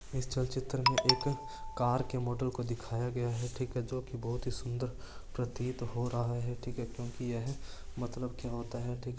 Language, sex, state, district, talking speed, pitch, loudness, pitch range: Marwari, male, Rajasthan, Churu, 215 wpm, 125 Hz, -36 LUFS, 120-130 Hz